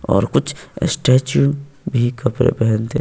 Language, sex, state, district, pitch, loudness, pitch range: Hindi, female, Bihar, West Champaran, 130 Hz, -18 LUFS, 120-145 Hz